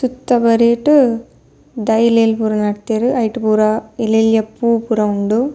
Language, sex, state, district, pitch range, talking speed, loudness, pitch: Tulu, female, Karnataka, Dakshina Kannada, 220-235 Hz, 120 wpm, -15 LUFS, 225 Hz